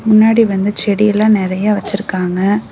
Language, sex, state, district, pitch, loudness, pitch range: Tamil, female, Tamil Nadu, Namakkal, 205 Hz, -13 LUFS, 195-215 Hz